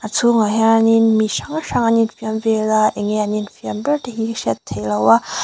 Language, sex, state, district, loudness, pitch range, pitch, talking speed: Mizo, female, Mizoram, Aizawl, -17 LUFS, 210-225 Hz, 220 Hz, 255 wpm